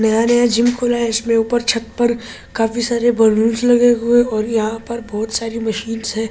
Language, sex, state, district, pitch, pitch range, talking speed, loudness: Hindi, male, Delhi, New Delhi, 230 Hz, 225-240 Hz, 210 wpm, -16 LUFS